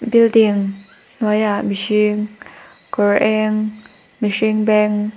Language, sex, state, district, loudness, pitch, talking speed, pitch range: Mizo, female, Mizoram, Aizawl, -17 LUFS, 210 Hz, 80 wpm, 205-215 Hz